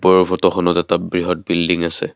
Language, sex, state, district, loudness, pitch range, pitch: Assamese, male, Assam, Kamrup Metropolitan, -17 LUFS, 85-90 Hz, 90 Hz